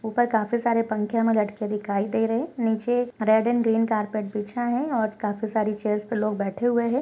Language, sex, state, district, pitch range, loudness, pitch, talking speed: Hindi, female, Goa, North and South Goa, 210-235 Hz, -24 LUFS, 220 Hz, 220 wpm